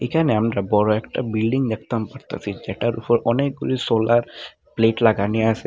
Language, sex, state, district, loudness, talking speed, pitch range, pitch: Bengali, male, Tripura, Unakoti, -21 LUFS, 150 wpm, 110-120 Hz, 115 Hz